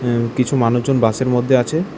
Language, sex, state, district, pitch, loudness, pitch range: Bengali, male, Tripura, West Tripura, 125 Hz, -17 LUFS, 120-135 Hz